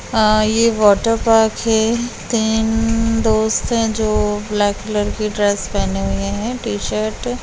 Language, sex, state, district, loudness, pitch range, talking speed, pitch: Hindi, female, Bihar, Begusarai, -17 LUFS, 205-225 Hz, 145 wpm, 215 Hz